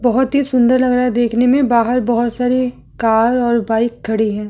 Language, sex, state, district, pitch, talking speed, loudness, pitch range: Hindi, female, Chhattisgarh, Kabirdham, 240 Hz, 215 wpm, -15 LUFS, 230-250 Hz